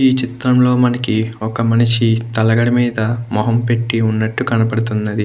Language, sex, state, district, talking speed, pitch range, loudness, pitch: Telugu, male, Andhra Pradesh, Krishna, 125 wpm, 110-120 Hz, -16 LUFS, 115 Hz